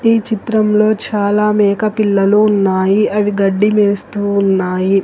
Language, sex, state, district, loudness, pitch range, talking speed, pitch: Telugu, female, Telangana, Hyderabad, -13 LUFS, 200-215 Hz, 105 wpm, 205 Hz